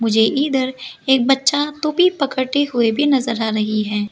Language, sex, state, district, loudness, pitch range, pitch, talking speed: Hindi, female, Arunachal Pradesh, Lower Dibang Valley, -17 LUFS, 225-285 Hz, 260 Hz, 175 wpm